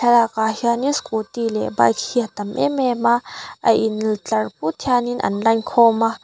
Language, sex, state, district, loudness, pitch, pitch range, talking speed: Mizo, female, Mizoram, Aizawl, -19 LUFS, 225 Hz, 215-240 Hz, 190 wpm